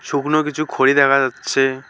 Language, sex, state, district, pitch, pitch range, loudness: Bengali, male, West Bengal, Alipurduar, 140 Hz, 135-150 Hz, -17 LUFS